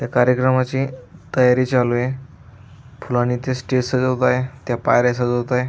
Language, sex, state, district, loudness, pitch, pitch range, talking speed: Marathi, male, Maharashtra, Aurangabad, -19 LUFS, 125 Hz, 125-130 Hz, 115 wpm